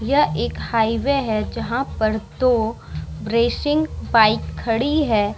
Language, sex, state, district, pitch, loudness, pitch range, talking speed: Hindi, female, Bihar, Vaishali, 225 Hz, -20 LUFS, 210-250 Hz, 125 wpm